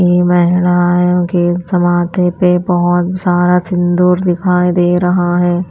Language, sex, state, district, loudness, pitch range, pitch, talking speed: Hindi, female, Punjab, Pathankot, -12 LUFS, 175-180 Hz, 180 Hz, 125 wpm